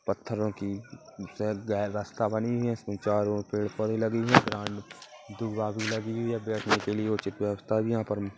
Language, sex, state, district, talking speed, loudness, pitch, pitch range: Hindi, male, Chhattisgarh, Kabirdham, 195 wpm, -29 LUFS, 105 Hz, 105-110 Hz